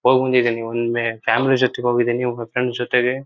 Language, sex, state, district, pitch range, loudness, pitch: Kannada, male, Karnataka, Shimoga, 120-125 Hz, -19 LUFS, 125 Hz